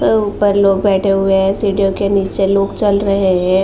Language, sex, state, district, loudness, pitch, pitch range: Hindi, female, Uttar Pradesh, Jalaun, -14 LUFS, 195 Hz, 195-200 Hz